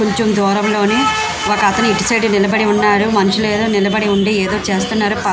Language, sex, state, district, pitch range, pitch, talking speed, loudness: Telugu, female, Andhra Pradesh, Visakhapatnam, 200-220 Hz, 210 Hz, 145 wpm, -14 LUFS